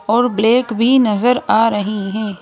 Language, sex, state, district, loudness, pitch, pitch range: Hindi, female, Madhya Pradesh, Bhopal, -15 LUFS, 225 Hz, 210-245 Hz